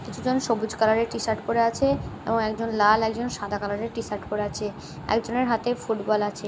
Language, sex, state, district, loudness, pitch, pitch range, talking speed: Bengali, female, West Bengal, North 24 Parganas, -25 LUFS, 220 Hz, 210-230 Hz, 195 wpm